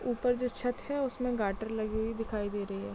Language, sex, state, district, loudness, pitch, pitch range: Hindi, female, Chhattisgarh, Korba, -33 LUFS, 225 Hz, 210-245 Hz